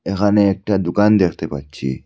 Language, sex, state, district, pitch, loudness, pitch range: Bengali, male, Assam, Hailakandi, 95 Hz, -17 LUFS, 75-105 Hz